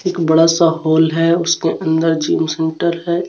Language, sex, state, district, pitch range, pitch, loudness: Hindi, male, Jharkhand, Garhwa, 160-170 Hz, 165 Hz, -15 LUFS